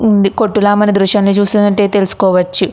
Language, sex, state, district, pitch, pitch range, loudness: Telugu, female, Andhra Pradesh, Krishna, 205 Hz, 195-210 Hz, -11 LUFS